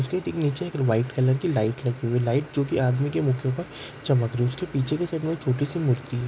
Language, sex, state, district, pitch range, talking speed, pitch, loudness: Hindi, male, Andhra Pradesh, Guntur, 125-150 Hz, 230 wpm, 135 Hz, -25 LUFS